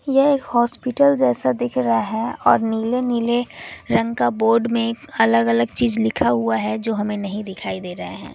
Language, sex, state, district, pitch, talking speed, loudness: Hindi, female, West Bengal, Alipurduar, 210 Hz, 195 wpm, -19 LUFS